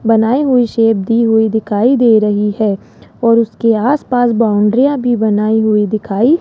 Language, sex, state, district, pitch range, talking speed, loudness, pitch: Hindi, male, Rajasthan, Jaipur, 215-245 Hz, 180 wpm, -12 LUFS, 225 Hz